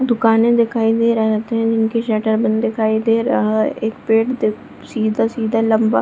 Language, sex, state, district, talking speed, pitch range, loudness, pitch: Hindi, female, Bihar, Supaul, 180 wpm, 220-230 Hz, -17 LUFS, 225 Hz